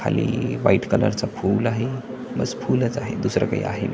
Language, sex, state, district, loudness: Marathi, male, Maharashtra, Washim, -23 LUFS